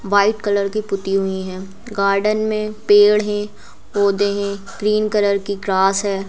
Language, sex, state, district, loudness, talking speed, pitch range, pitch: Hindi, female, Madhya Pradesh, Bhopal, -18 LUFS, 160 wpm, 195-210 Hz, 200 Hz